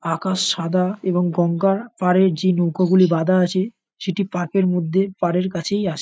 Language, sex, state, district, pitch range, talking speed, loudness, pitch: Bengali, male, West Bengal, North 24 Parganas, 175-190 Hz, 150 wpm, -19 LUFS, 185 Hz